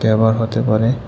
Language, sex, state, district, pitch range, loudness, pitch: Bengali, male, Tripura, West Tripura, 110-115 Hz, -16 LUFS, 110 Hz